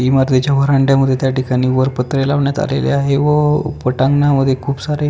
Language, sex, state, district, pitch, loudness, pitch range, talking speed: Marathi, male, Maharashtra, Pune, 140 Hz, -15 LUFS, 130-145 Hz, 200 wpm